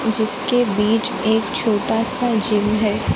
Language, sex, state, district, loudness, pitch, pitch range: Hindi, female, Gujarat, Gandhinagar, -17 LUFS, 220 Hz, 210-240 Hz